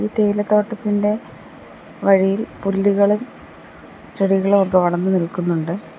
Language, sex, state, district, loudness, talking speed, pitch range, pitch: Malayalam, female, Kerala, Kollam, -18 LUFS, 80 wpm, 190-210 Hz, 200 Hz